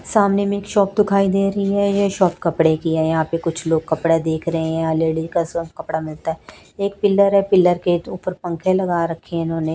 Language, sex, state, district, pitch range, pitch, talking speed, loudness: Hindi, female, Chhattisgarh, Raipur, 160-195 Hz, 170 Hz, 235 wpm, -19 LUFS